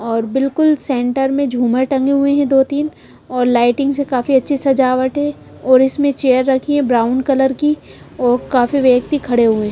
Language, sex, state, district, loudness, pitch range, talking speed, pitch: Hindi, female, Punjab, Pathankot, -15 LUFS, 250-280 Hz, 175 wpm, 265 Hz